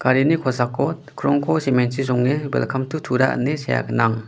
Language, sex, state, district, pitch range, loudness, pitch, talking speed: Garo, male, Meghalaya, West Garo Hills, 120-145 Hz, -20 LUFS, 130 Hz, 140 wpm